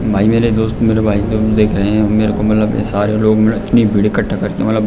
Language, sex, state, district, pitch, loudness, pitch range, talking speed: Hindi, male, Uttarakhand, Tehri Garhwal, 110 Hz, -14 LUFS, 105-110 Hz, 260 wpm